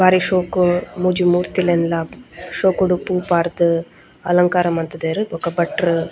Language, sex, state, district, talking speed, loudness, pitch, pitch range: Tulu, female, Karnataka, Dakshina Kannada, 110 wpm, -18 LUFS, 175 Hz, 170-180 Hz